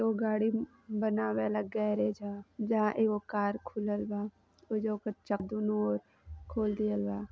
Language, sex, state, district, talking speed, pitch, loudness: Bhojpuri, female, Uttar Pradesh, Gorakhpur, 145 wpm, 210 Hz, -33 LUFS